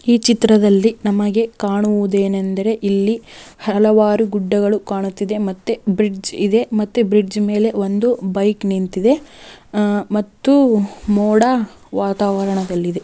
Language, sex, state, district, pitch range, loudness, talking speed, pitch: Kannada, female, Karnataka, Chamarajanagar, 200-220 Hz, -17 LUFS, 85 wpm, 210 Hz